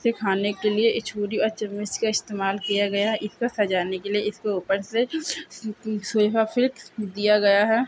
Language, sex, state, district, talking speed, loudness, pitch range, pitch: Hindi, female, Bihar, Saran, 185 wpm, -24 LUFS, 205-220 Hz, 210 Hz